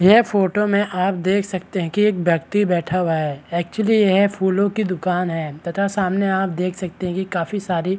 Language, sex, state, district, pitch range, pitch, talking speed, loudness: Hindi, male, Bihar, Madhepura, 175-200 Hz, 185 Hz, 220 wpm, -20 LUFS